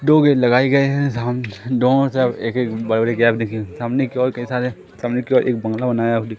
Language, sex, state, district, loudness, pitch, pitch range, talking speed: Hindi, male, Madhya Pradesh, Katni, -18 LUFS, 125 Hz, 115-130 Hz, 195 wpm